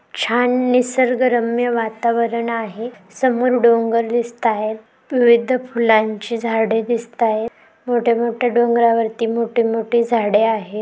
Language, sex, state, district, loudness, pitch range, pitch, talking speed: Marathi, female, Maharashtra, Aurangabad, -17 LUFS, 225-245 Hz, 235 Hz, 90 wpm